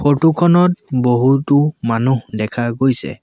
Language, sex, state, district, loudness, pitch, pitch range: Assamese, male, Assam, Sonitpur, -15 LUFS, 130 Hz, 120-150 Hz